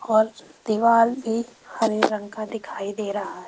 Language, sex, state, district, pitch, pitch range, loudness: Hindi, female, Rajasthan, Jaipur, 220 Hz, 215-230 Hz, -23 LUFS